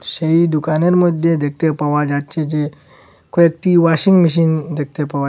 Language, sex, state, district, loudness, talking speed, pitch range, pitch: Bengali, male, Assam, Hailakandi, -15 LUFS, 145 wpm, 145-165 Hz, 155 Hz